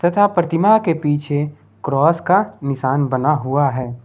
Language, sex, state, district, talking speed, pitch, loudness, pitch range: Hindi, male, Bihar, Gopalganj, 150 wpm, 145 Hz, -17 LUFS, 135-170 Hz